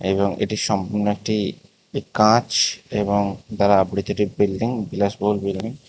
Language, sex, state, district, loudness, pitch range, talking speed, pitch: Bengali, male, Tripura, West Tripura, -21 LUFS, 100-105 Hz, 130 wpm, 100 Hz